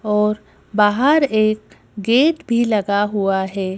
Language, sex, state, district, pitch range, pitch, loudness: Hindi, female, Madhya Pradesh, Bhopal, 205-235 Hz, 210 Hz, -17 LUFS